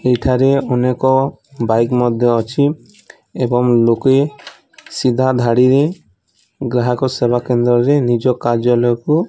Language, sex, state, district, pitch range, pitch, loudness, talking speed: Odia, male, Odisha, Nuapada, 120-135 Hz, 125 Hz, -15 LUFS, 95 wpm